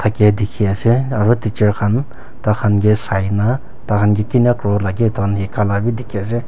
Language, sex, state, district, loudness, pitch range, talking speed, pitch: Nagamese, male, Nagaland, Kohima, -16 LUFS, 105-120 Hz, 220 wpm, 105 Hz